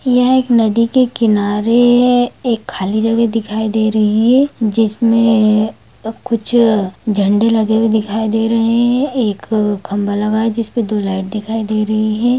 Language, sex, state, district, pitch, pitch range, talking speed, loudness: Hindi, female, Bihar, Darbhanga, 225 Hz, 215-235 Hz, 165 wpm, -14 LUFS